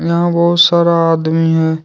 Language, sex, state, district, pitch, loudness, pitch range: Hindi, male, Jharkhand, Deoghar, 165 Hz, -12 LUFS, 160-170 Hz